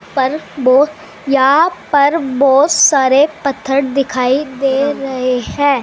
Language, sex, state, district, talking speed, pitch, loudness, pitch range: Hindi, female, Haryana, Charkhi Dadri, 95 wpm, 275 Hz, -13 LUFS, 265-285 Hz